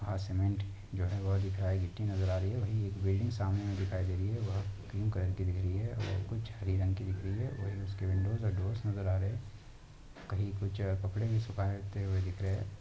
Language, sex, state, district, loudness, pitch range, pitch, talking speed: Hindi, male, Chhattisgarh, Rajnandgaon, -35 LUFS, 95-105 Hz, 100 Hz, 255 wpm